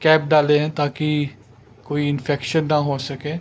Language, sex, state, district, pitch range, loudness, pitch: Hindi, male, Chandigarh, Chandigarh, 140-150 Hz, -20 LUFS, 145 Hz